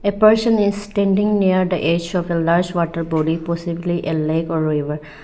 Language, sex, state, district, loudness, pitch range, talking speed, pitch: English, female, Arunachal Pradesh, Lower Dibang Valley, -18 LUFS, 160-200 Hz, 185 wpm, 170 Hz